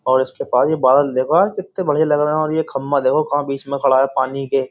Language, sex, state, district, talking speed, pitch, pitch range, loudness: Hindi, male, Uttar Pradesh, Jyotiba Phule Nagar, 305 wpm, 140 Hz, 135-150 Hz, -17 LUFS